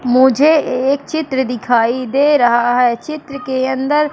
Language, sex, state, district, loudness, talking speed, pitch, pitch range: Hindi, female, Madhya Pradesh, Katni, -14 LUFS, 145 wpm, 260 Hz, 245-290 Hz